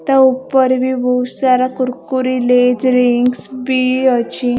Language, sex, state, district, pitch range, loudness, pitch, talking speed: Odia, female, Odisha, Khordha, 250-260 Hz, -14 LUFS, 255 Hz, 130 wpm